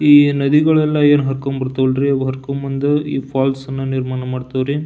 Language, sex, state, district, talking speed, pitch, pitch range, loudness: Kannada, male, Karnataka, Belgaum, 160 wpm, 135 Hz, 130-145 Hz, -17 LUFS